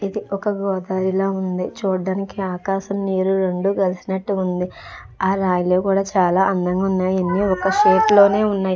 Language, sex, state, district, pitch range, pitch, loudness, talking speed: Telugu, female, Andhra Pradesh, Krishna, 185-195 Hz, 190 Hz, -19 LUFS, 145 wpm